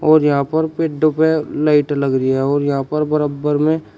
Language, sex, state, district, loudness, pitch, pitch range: Hindi, male, Uttar Pradesh, Shamli, -17 LUFS, 150 Hz, 140-155 Hz